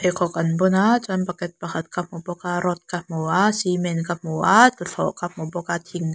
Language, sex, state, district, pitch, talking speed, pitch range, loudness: Mizo, female, Mizoram, Aizawl, 175 Hz, 255 wpm, 170-185 Hz, -22 LUFS